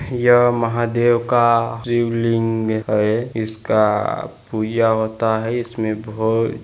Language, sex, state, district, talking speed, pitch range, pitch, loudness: Hindi, male, Chhattisgarh, Balrampur, 100 wpm, 110-120 Hz, 115 Hz, -18 LUFS